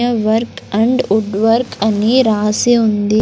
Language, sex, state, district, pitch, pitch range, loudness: Telugu, male, Andhra Pradesh, Sri Satya Sai, 220 Hz, 210-240 Hz, -14 LUFS